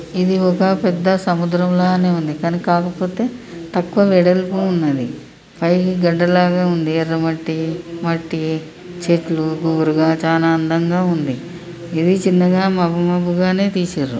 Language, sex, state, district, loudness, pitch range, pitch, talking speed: Telugu, female, Andhra Pradesh, Krishna, -17 LUFS, 165-180 Hz, 175 Hz, 120 wpm